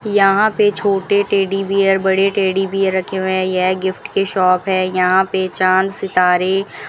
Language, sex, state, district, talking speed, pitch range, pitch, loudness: Hindi, female, Rajasthan, Bikaner, 185 wpm, 185-195 Hz, 190 Hz, -16 LUFS